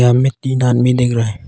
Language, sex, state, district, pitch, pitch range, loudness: Hindi, male, Arunachal Pradesh, Longding, 125 Hz, 120-125 Hz, -14 LUFS